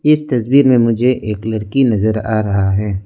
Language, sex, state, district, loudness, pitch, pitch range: Hindi, male, Arunachal Pradesh, Lower Dibang Valley, -14 LUFS, 110 Hz, 105-130 Hz